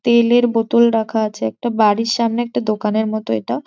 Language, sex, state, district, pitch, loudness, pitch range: Bengali, female, West Bengal, Jhargram, 225 Hz, -17 LUFS, 215-235 Hz